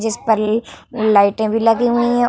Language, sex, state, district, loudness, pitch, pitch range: Hindi, female, Bihar, Vaishali, -16 LUFS, 225 Hz, 220-240 Hz